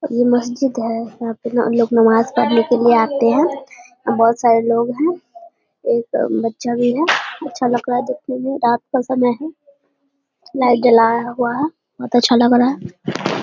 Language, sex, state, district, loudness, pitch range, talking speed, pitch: Hindi, female, Bihar, Vaishali, -17 LUFS, 235-280 Hz, 180 wpm, 245 Hz